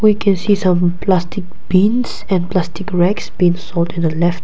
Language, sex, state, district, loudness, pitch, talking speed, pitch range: English, female, Nagaland, Kohima, -16 LUFS, 185 Hz, 160 wpm, 175-195 Hz